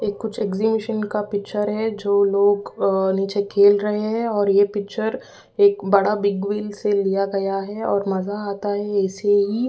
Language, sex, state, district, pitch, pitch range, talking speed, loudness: Hindi, female, Uttar Pradesh, Ghazipur, 205 Hz, 200-210 Hz, 180 wpm, -20 LUFS